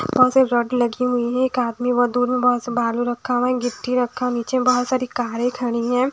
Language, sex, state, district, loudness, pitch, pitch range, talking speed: Hindi, female, Odisha, Nuapada, -20 LUFS, 245 Hz, 240-250 Hz, 225 wpm